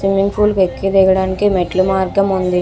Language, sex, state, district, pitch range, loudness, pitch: Telugu, female, Andhra Pradesh, Visakhapatnam, 185-195 Hz, -15 LUFS, 190 Hz